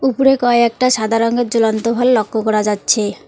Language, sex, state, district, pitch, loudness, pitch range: Bengali, female, West Bengal, Alipurduar, 230 Hz, -15 LUFS, 220-245 Hz